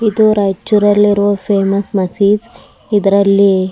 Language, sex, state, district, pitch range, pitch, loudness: Kannada, male, Karnataka, Raichur, 195-210 Hz, 200 Hz, -12 LUFS